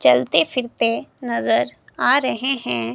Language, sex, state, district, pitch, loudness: Hindi, female, Himachal Pradesh, Shimla, 235 Hz, -20 LUFS